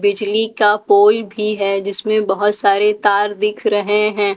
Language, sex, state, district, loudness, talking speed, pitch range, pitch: Hindi, female, Delhi, New Delhi, -15 LUFS, 165 wpm, 200-210 Hz, 205 Hz